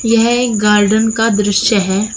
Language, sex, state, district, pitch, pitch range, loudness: Hindi, female, Uttar Pradesh, Shamli, 220 Hz, 210-230 Hz, -12 LUFS